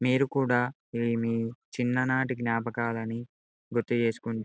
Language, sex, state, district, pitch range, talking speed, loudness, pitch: Telugu, male, Telangana, Karimnagar, 115-125 Hz, 110 wpm, -29 LUFS, 120 Hz